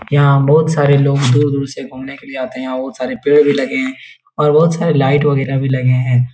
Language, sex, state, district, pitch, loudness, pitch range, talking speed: Hindi, male, Uttar Pradesh, Etah, 140 Hz, -14 LUFS, 130-145 Hz, 235 wpm